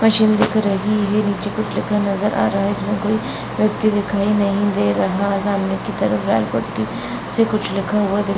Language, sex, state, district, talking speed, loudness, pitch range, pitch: Hindi, female, Bihar, Bhagalpur, 235 wpm, -19 LUFS, 200-215 Hz, 205 Hz